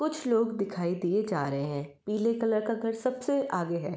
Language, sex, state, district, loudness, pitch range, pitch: Hindi, female, Uttar Pradesh, Varanasi, -30 LUFS, 175-230 Hz, 215 Hz